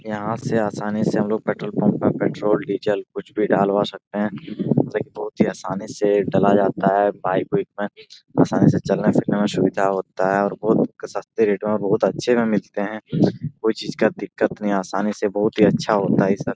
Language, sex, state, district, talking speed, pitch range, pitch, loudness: Hindi, male, Bihar, Darbhanga, 215 wpm, 100-105 Hz, 105 Hz, -21 LUFS